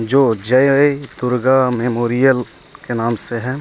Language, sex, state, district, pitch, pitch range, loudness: Hindi, male, Jharkhand, Deoghar, 125 Hz, 120-135 Hz, -16 LUFS